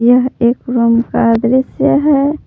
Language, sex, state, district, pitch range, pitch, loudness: Hindi, female, Jharkhand, Palamu, 235-265 Hz, 250 Hz, -12 LUFS